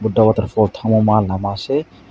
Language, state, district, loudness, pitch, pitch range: Kokborok, Tripura, West Tripura, -17 LUFS, 110 Hz, 100-110 Hz